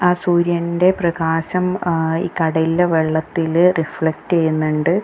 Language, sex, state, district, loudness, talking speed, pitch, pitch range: Malayalam, female, Kerala, Kasaragod, -17 LUFS, 105 wpm, 170 Hz, 160-180 Hz